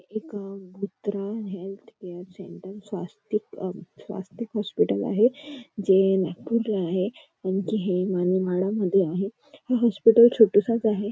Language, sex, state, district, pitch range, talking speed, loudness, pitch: Marathi, female, Maharashtra, Nagpur, 190-220 Hz, 120 wpm, -24 LUFS, 200 Hz